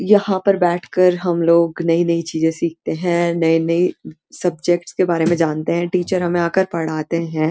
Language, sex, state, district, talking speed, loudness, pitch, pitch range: Hindi, female, Uttarakhand, Uttarkashi, 175 wpm, -18 LUFS, 170 Hz, 165-180 Hz